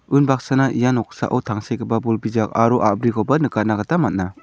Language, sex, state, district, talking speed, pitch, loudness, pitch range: Garo, male, Meghalaya, South Garo Hills, 150 wpm, 115 Hz, -19 LUFS, 110-125 Hz